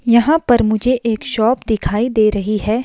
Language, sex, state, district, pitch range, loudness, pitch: Hindi, female, Himachal Pradesh, Shimla, 215-245 Hz, -16 LUFS, 230 Hz